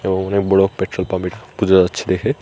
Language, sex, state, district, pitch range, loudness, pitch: Bengali, male, Tripura, Unakoti, 95-100 Hz, -17 LUFS, 95 Hz